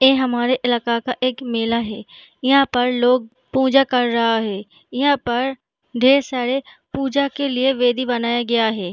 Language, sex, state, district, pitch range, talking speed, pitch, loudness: Hindi, female, Bihar, Jahanabad, 235-265 Hz, 170 wpm, 250 Hz, -19 LUFS